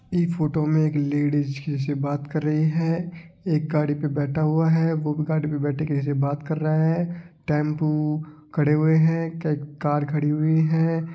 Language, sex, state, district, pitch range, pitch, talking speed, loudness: Marwari, male, Rajasthan, Nagaur, 150-160 Hz, 155 Hz, 205 wpm, -23 LUFS